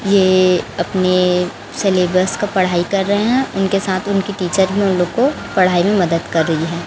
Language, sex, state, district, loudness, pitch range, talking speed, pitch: Hindi, female, Chhattisgarh, Raipur, -16 LUFS, 180-195 Hz, 190 wpm, 185 Hz